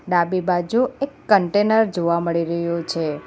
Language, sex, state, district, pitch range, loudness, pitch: Gujarati, female, Gujarat, Valsad, 170-210 Hz, -20 LUFS, 175 Hz